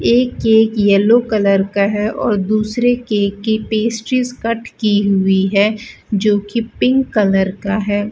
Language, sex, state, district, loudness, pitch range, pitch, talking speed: Hindi, female, Rajasthan, Bikaner, -15 LUFS, 200-230 Hz, 215 Hz, 150 wpm